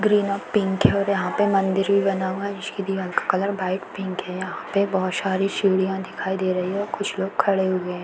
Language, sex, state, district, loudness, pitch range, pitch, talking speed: Hindi, female, Uttar Pradesh, Varanasi, -23 LUFS, 185-200 Hz, 195 Hz, 245 wpm